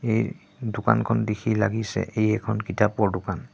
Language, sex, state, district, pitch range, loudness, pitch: Assamese, male, Assam, Sonitpur, 105-115 Hz, -25 LUFS, 110 Hz